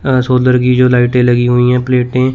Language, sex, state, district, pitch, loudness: Hindi, male, Chandigarh, Chandigarh, 125 Hz, -11 LUFS